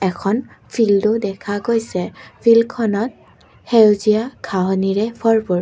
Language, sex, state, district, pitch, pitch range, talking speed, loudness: Assamese, female, Assam, Kamrup Metropolitan, 215 Hz, 195-230 Hz, 85 wpm, -17 LUFS